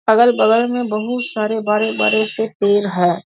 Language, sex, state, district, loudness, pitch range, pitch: Hindi, female, Bihar, Saharsa, -16 LUFS, 210-235 Hz, 215 Hz